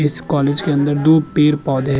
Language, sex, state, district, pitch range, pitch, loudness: Hindi, male, Uttar Pradesh, Jyotiba Phule Nagar, 140-150 Hz, 145 Hz, -15 LUFS